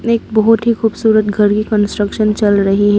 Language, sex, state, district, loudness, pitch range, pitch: Hindi, female, Arunachal Pradesh, Papum Pare, -13 LUFS, 205-220 Hz, 215 Hz